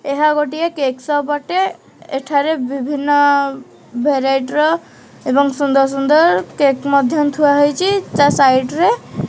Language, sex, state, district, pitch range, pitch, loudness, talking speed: Odia, female, Odisha, Khordha, 275-300 Hz, 285 Hz, -15 LUFS, 125 wpm